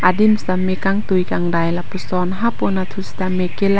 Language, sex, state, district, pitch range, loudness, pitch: Karbi, female, Assam, Karbi Anglong, 180-200 Hz, -19 LUFS, 185 Hz